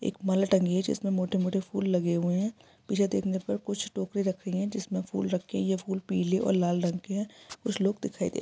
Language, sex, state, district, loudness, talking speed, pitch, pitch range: Hindi, female, Bihar, Kishanganj, -29 LUFS, 265 wpm, 190 Hz, 185-200 Hz